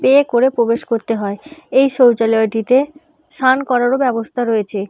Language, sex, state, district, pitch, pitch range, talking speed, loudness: Bengali, female, West Bengal, North 24 Parganas, 245 Hz, 225-270 Hz, 160 wpm, -15 LUFS